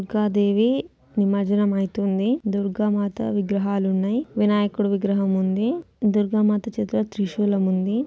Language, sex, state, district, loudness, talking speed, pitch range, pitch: Telugu, female, Telangana, Nalgonda, -22 LUFS, 120 wpm, 200-215 Hz, 205 Hz